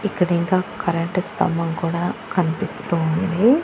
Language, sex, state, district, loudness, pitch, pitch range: Telugu, female, Andhra Pradesh, Annamaya, -21 LUFS, 175 Hz, 170-185 Hz